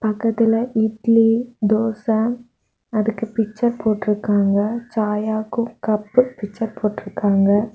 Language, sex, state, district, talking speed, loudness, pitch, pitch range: Tamil, female, Tamil Nadu, Kanyakumari, 75 wpm, -20 LUFS, 220 Hz, 210-230 Hz